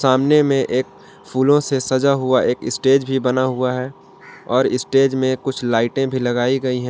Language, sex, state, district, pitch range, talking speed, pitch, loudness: Hindi, male, Jharkhand, Palamu, 125-135 Hz, 190 wpm, 130 Hz, -18 LUFS